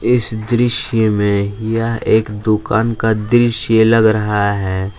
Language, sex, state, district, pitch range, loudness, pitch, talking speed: Hindi, male, Jharkhand, Palamu, 105-115 Hz, -15 LUFS, 110 Hz, 130 wpm